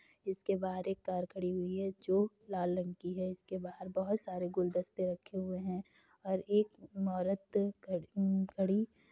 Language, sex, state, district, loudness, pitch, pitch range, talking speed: Hindi, female, Uttar Pradesh, Jalaun, -37 LUFS, 190 Hz, 180-195 Hz, 180 wpm